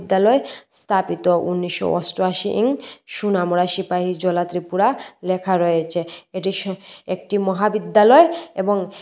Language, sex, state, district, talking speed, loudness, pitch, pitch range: Bengali, female, Tripura, West Tripura, 105 wpm, -19 LUFS, 190 Hz, 180-205 Hz